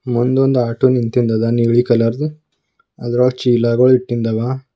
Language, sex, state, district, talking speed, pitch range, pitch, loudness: Kannada, male, Karnataka, Bidar, 115 wpm, 120-130 Hz, 120 Hz, -15 LUFS